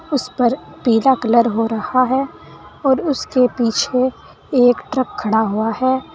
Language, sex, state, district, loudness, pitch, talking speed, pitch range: Hindi, female, Uttar Pradesh, Saharanpur, -17 LUFS, 255 Hz, 145 wpm, 230-265 Hz